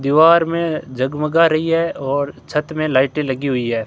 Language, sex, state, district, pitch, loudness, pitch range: Hindi, male, Rajasthan, Bikaner, 150 Hz, -17 LUFS, 135-165 Hz